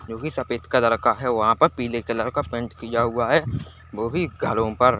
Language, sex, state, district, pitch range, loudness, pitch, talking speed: Hindi, male, Chhattisgarh, Bilaspur, 115-125 Hz, -23 LUFS, 120 Hz, 230 wpm